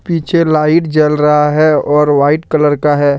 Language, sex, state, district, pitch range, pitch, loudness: Hindi, male, Jharkhand, Deoghar, 150-155 Hz, 150 Hz, -11 LUFS